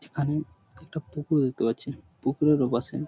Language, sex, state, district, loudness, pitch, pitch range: Bengali, male, West Bengal, Purulia, -27 LUFS, 145 Hz, 125-150 Hz